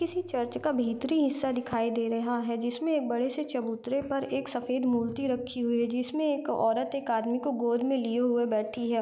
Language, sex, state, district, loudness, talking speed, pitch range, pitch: Hindi, female, Bihar, East Champaran, -29 LUFS, 220 wpm, 235-275 Hz, 245 Hz